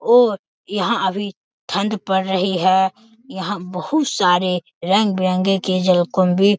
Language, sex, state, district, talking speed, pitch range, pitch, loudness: Hindi, male, Bihar, Sitamarhi, 145 wpm, 185-205 Hz, 190 Hz, -18 LUFS